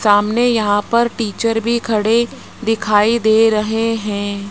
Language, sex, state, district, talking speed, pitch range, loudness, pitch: Hindi, male, Rajasthan, Jaipur, 135 wpm, 210-230 Hz, -16 LUFS, 225 Hz